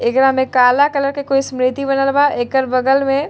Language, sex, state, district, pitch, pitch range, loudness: Bhojpuri, female, Bihar, Saran, 270 Hz, 255-275 Hz, -15 LUFS